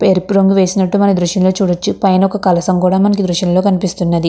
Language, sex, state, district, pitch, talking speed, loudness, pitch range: Telugu, female, Andhra Pradesh, Anantapur, 190 Hz, 180 wpm, -13 LUFS, 180-195 Hz